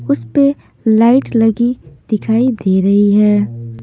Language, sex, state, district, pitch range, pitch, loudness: Hindi, female, Maharashtra, Mumbai Suburban, 150-230 Hz, 210 Hz, -13 LUFS